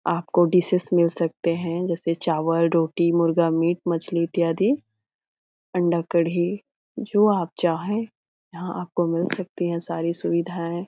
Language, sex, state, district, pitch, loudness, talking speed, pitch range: Hindi, female, Bihar, Jahanabad, 170 Hz, -23 LUFS, 140 wpm, 170-180 Hz